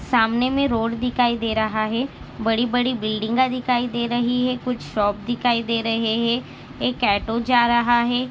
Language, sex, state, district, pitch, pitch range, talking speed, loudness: Hindi, female, Maharashtra, Dhule, 240 Hz, 225-250 Hz, 175 wpm, -21 LUFS